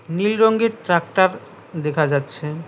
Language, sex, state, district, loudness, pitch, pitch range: Bengali, male, West Bengal, Cooch Behar, -19 LUFS, 170 Hz, 150-210 Hz